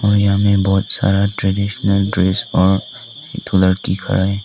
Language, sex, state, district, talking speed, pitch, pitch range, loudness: Hindi, male, Nagaland, Kohima, 160 wpm, 100 Hz, 95-100 Hz, -16 LUFS